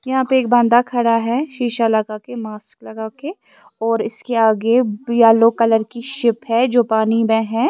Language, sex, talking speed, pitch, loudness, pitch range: Urdu, female, 170 wpm, 230 Hz, -17 LUFS, 225-245 Hz